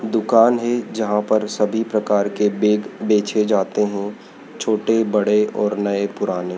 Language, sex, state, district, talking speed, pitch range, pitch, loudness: Hindi, male, Madhya Pradesh, Dhar, 145 wpm, 105-110 Hz, 105 Hz, -19 LUFS